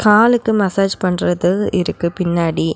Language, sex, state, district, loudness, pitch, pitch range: Tamil, female, Tamil Nadu, Nilgiris, -16 LUFS, 185 Hz, 170-210 Hz